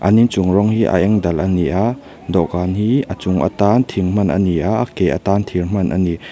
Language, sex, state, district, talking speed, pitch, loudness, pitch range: Mizo, male, Mizoram, Aizawl, 255 wpm, 95 Hz, -16 LUFS, 90-105 Hz